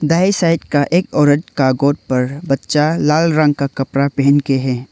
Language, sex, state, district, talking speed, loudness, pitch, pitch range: Hindi, male, Arunachal Pradesh, Longding, 195 wpm, -15 LUFS, 145 Hz, 135-155 Hz